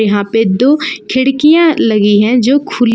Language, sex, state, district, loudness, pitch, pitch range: Hindi, female, Jharkhand, Palamu, -10 LUFS, 245 Hz, 215-285 Hz